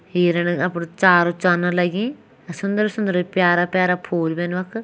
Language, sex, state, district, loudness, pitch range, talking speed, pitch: Kumaoni, female, Uttarakhand, Tehri Garhwal, -19 LUFS, 175-185 Hz, 160 wpm, 180 Hz